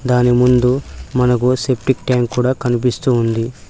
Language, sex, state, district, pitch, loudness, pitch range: Telugu, male, Telangana, Mahabubabad, 125 Hz, -16 LUFS, 120-130 Hz